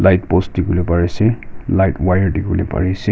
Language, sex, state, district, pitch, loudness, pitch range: Nagamese, male, Nagaland, Kohima, 95 Hz, -17 LUFS, 90-100 Hz